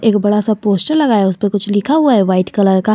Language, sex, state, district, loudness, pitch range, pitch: Hindi, male, Jharkhand, Garhwa, -13 LUFS, 200-220 Hz, 205 Hz